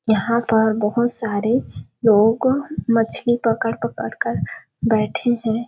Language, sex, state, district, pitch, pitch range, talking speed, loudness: Hindi, female, Chhattisgarh, Sarguja, 225 Hz, 220-240 Hz, 125 wpm, -20 LUFS